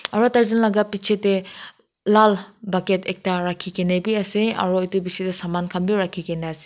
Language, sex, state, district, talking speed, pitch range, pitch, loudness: Nagamese, female, Nagaland, Kohima, 200 wpm, 185-210 Hz, 190 Hz, -20 LUFS